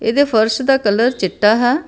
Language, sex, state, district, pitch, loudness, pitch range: Punjabi, female, Karnataka, Bangalore, 235 Hz, -15 LUFS, 220-265 Hz